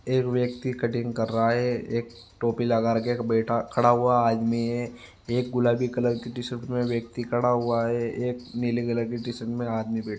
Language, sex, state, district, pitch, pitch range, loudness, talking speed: Marwari, male, Rajasthan, Nagaur, 120 Hz, 115-120 Hz, -26 LUFS, 210 wpm